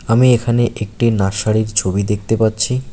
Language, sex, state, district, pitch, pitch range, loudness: Bengali, male, West Bengal, Alipurduar, 110 Hz, 105-120 Hz, -16 LUFS